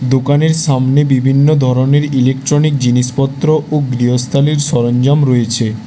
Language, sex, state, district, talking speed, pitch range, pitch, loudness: Bengali, male, West Bengal, Alipurduar, 100 wpm, 125-145 Hz, 135 Hz, -12 LUFS